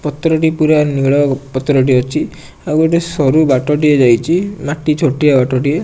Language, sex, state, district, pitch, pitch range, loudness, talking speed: Odia, male, Odisha, Nuapada, 150 Hz, 135-155 Hz, -13 LUFS, 175 wpm